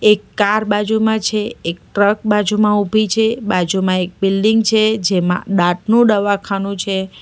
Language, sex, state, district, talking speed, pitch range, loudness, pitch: Gujarati, female, Gujarat, Valsad, 140 wpm, 195-215 Hz, -16 LUFS, 205 Hz